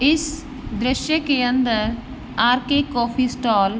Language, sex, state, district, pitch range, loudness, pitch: Hindi, female, Uttar Pradesh, Varanasi, 235-280 Hz, -20 LUFS, 255 Hz